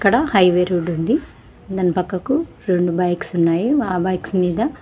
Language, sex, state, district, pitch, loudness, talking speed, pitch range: Telugu, female, Telangana, Mahabubabad, 185 Hz, -19 LUFS, 150 wpm, 180-230 Hz